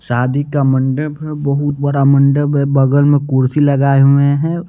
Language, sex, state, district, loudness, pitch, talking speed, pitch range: Hindi, male, Bihar, West Champaran, -13 LUFS, 140 Hz, 180 wpm, 140-145 Hz